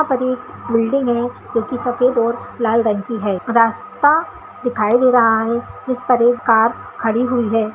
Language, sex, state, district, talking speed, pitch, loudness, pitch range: Hindi, female, Bihar, Kishanganj, 195 wpm, 240 Hz, -17 LUFS, 230-250 Hz